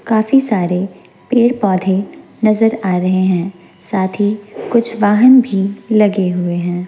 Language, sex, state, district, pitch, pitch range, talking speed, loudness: Hindi, female, Chhattisgarh, Raipur, 200 Hz, 185-220 Hz, 140 wpm, -14 LUFS